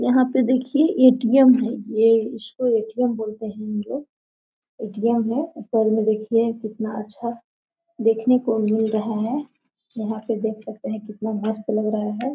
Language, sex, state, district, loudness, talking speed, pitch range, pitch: Hindi, female, Jharkhand, Sahebganj, -21 LUFS, 190 wpm, 220-250 Hz, 225 Hz